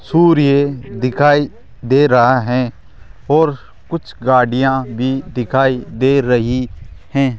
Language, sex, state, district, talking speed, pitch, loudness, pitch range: Hindi, male, Rajasthan, Jaipur, 105 wpm, 130 Hz, -15 LUFS, 125-140 Hz